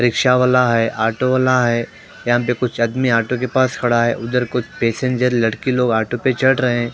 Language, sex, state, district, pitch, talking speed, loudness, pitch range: Hindi, male, Punjab, Pathankot, 125 Hz, 215 wpm, -17 LUFS, 115-125 Hz